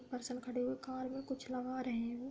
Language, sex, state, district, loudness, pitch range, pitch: Hindi, female, Uttar Pradesh, Budaun, -41 LUFS, 250-260 Hz, 255 Hz